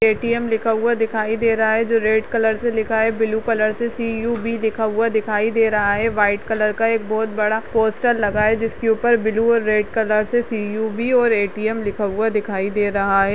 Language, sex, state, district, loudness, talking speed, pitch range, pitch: Kumaoni, female, Uttarakhand, Uttarkashi, -19 LUFS, 215 wpm, 215-230 Hz, 220 Hz